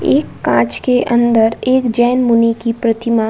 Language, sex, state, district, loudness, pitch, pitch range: Hindi, female, Uttar Pradesh, Budaun, -14 LUFS, 235 Hz, 225-245 Hz